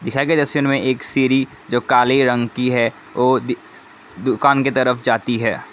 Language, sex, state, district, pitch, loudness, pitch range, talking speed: Hindi, male, Assam, Kamrup Metropolitan, 125 Hz, -17 LUFS, 120-135 Hz, 190 wpm